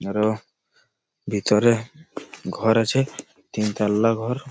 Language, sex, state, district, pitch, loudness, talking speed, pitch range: Bengali, male, West Bengal, Malda, 110 Hz, -22 LUFS, 95 wpm, 105-120 Hz